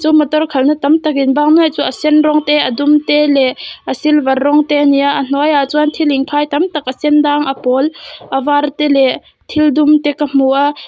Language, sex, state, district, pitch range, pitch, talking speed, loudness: Mizo, female, Mizoram, Aizawl, 280-300 Hz, 295 Hz, 250 wpm, -12 LUFS